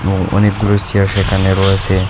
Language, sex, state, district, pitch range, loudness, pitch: Bengali, male, Assam, Hailakandi, 95-100 Hz, -13 LUFS, 95 Hz